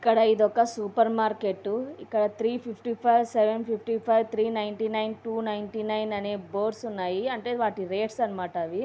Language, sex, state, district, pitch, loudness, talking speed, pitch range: Telugu, female, Andhra Pradesh, Anantapur, 220 Hz, -27 LUFS, 170 wpm, 210-230 Hz